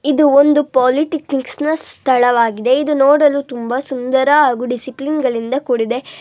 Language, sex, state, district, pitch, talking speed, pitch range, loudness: Kannada, female, Karnataka, Bellary, 265 Hz, 95 wpm, 250-295 Hz, -15 LUFS